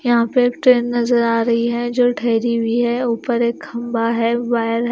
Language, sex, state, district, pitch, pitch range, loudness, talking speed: Hindi, female, Himachal Pradesh, Shimla, 235 Hz, 230-240 Hz, -17 LUFS, 195 wpm